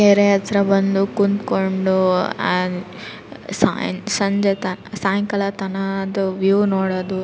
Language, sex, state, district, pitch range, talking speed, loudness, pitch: Kannada, female, Karnataka, Raichur, 190-200 Hz, 90 wpm, -19 LUFS, 195 Hz